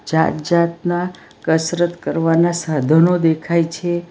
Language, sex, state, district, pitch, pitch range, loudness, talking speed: Gujarati, female, Gujarat, Valsad, 170 Hz, 160-175 Hz, -17 LUFS, 100 wpm